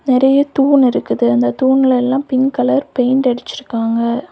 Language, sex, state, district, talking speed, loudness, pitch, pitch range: Tamil, female, Tamil Nadu, Kanyakumari, 155 wpm, -14 LUFS, 260 Hz, 240-270 Hz